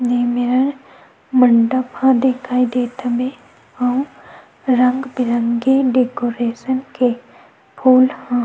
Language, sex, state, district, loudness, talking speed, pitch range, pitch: Chhattisgarhi, female, Chhattisgarh, Sukma, -17 LUFS, 90 wpm, 245-260 Hz, 250 Hz